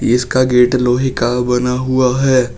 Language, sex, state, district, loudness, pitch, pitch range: Hindi, male, Uttar Pradesh, Shamli, -14 LUFS, 125 Hz, 125-130 Hz